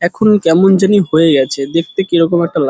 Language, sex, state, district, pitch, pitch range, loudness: Bengali, male, West Bengal, Dakshin Dinajpur, 170 Hz, 160-190 Hz, -12 LUFS